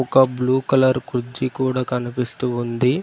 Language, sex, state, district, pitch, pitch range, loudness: Telugu, male, Telangana, Mahabubabad, 130 Hz, 125-130 Hz, -20 LUFS